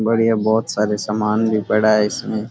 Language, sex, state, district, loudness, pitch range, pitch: Rajasthani, male, Rajasthan, Churu, -18 LUFS, 105-110 Hz, 110 Hz